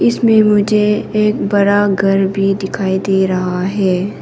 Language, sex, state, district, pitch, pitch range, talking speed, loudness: Hindi, female, Arunachal Pradesh, Papum Pare, 195 Hz, 190-210 Hz, 140 wpm, -14 LUFS